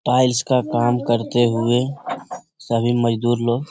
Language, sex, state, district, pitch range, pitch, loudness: Hindi, male, Bihar, Jamui, 120-130 Hz, 120 Hz, -19 LUFS